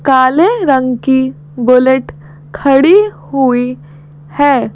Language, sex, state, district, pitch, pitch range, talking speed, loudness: Hindi, female, Madhya Pradesh, Bhopal, 260 Hz, 175-275 Hz, 90 wpm, -11 LUFS